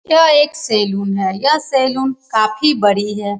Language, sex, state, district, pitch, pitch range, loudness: Hindi, female, Bihar, Jamui, 255 Hz, 205-295 Hz, -15 LUFS